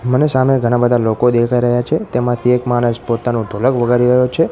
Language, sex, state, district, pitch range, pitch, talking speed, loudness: Gujarati, male, Gujarat, Gandhinagar, 120-125 Hz, 120 Hz, 210 wpm, -15 LUFS